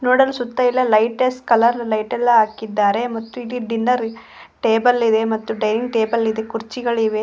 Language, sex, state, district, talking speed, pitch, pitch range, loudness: Kannada, female, Karnataka, Koppal, 150 wpm, 230 Hz, 220-245 Hz, -18 LUFS